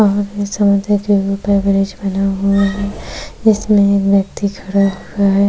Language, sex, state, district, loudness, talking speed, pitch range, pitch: Hindi, female, Uttar Pradesh, Jyotiba Phule Nagar, -15 LUFS, 110 wpm, 195-205 Hz, 200 Hz